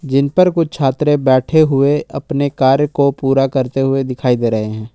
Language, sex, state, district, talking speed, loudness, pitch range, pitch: Hindi, male, Jharkhand, Ranchi, 195 wpm, -15 LUFS, 130-145 Hz, 135 Hz